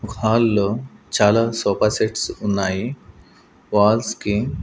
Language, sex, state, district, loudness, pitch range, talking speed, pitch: Telugu, male, Andhra Pradesh, Sri Satya Sai, -20 LUFS, 105-110 Hz, 130 wpm, 110 Hz